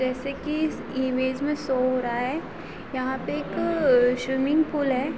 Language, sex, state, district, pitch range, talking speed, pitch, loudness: Hindi, female, Bihar, Sitamarhi, 255-290 Hz, 175 wpm, 260 Hz, -25 LUFS